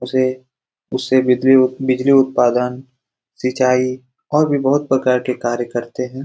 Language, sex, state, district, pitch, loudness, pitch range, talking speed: Hindi, male, Bihar, Jamui, 130 Hz, -17 LUFS, 125-130 Hz, 125 wpm